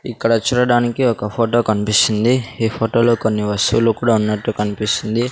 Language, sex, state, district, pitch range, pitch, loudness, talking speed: Telugu, male, Andhra Pradesh, Sri Satya Sai, 105-120 Hz, 115 Hz, -17 LUFS, 135 wpm